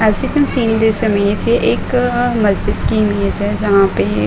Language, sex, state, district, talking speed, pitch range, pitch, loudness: Hindi, female, Uttar Pradesh, Muzaffarnagar, 185 wpm, 200-240 Hz, 215 Hz, -15 LUFS